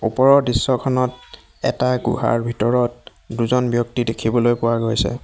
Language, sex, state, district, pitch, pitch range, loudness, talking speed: Assamese, male, Assam, Hailakandi, 120 Hz, 115-125 Hz, -19 LUFS, 115 wpm